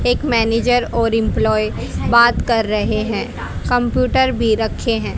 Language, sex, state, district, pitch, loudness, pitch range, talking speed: Hindi, female, Haryana, Charkhi Dadri, 230 Hz, -17 LUFS, 215-240 Hz, 140 wpm